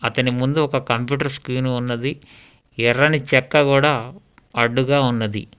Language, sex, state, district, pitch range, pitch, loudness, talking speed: Telugu, male, Telangana, Hyderabad, 120-140 Hz, 130 Hz, -19 LUFS, 120 wpm